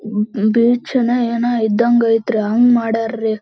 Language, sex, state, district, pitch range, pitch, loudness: Kannada, female, Karnataka, Belgaum, 220-240 Hz, 230 Hz, -15 LUFS